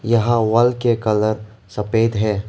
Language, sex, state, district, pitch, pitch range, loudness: Hindi, male, Arunachal Pradesh, Lower Dibang Valley, 110 Hz, 105-115 Hz, -18 LUFS